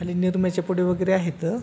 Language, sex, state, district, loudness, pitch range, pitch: Marathi, male, Maharashtra, Pune, -23 LUFS, 175-185 Hz, 185 Hz